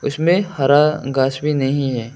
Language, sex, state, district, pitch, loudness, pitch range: Hindi, male, Arunachal Pradesh, Lower Dibang Valley, 140 Hz, -17 LUFS, 135-150 Hz